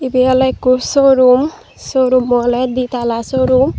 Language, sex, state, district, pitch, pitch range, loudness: Chakma, female, Tripura, Dhalai, 255 Hz, 250-260 Hz, -13 LUFS